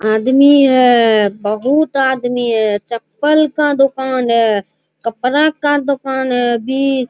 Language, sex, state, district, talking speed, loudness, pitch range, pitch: Hindi, male, Bihar, Araria, 125 wpm, -13 LUFS, 230-275 Hz, 255 Hz